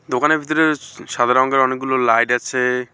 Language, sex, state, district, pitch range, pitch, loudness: Bengali, male, West Bengal, Alipurduar, 125-135 Hz, 130 Hz, -17 LUFS